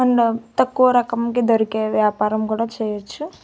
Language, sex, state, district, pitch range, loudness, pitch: Telugu, female, Andhra Pradesh, Annamaya, 215-240 Hz, -19 LUFS, 230 Hz